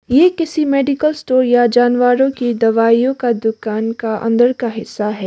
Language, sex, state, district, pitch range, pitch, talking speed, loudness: Hindi, female, Sikkim, Gangtok, 225-265 Hz, 245 Hz, 170 wpm, -15 LUFS